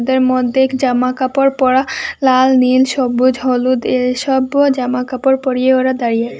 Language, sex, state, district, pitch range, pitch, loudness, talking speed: Bengali, female, Assam, Hailakandi, 255-265 Hz, 260 Hz, -14 LUFS, 170 wpm